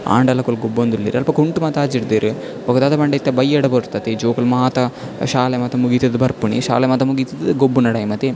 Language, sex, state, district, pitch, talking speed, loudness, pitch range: Tulu, male, Karnataka, Dakshina Kannada, 125 Hz, 195 wpm, -17 LUFS, 120-135 Hz